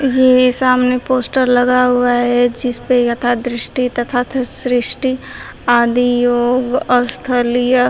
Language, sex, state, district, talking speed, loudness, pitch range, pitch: Hindi, female, Uttar Pradesh, Shamli, 115 wpm, -14 LUFS, 245-255 Hz, 245 Hz